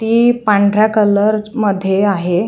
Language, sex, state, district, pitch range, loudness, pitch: Marathi, female, Maharashtra, Solapur, 200-220 Hz, -13 LUFS, 210 Hz